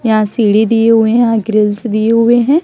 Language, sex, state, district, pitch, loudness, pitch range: Hindi, female, Chhattisgarh, Raipur, 225 Hz, -11 LUFS, 215-230 Hz